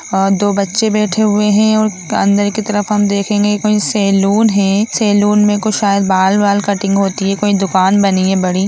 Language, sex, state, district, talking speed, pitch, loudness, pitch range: Hindi, female, Bihar, Jamui, 200 wpm, 205 Hz, -13 LUFS, 195-210 Hz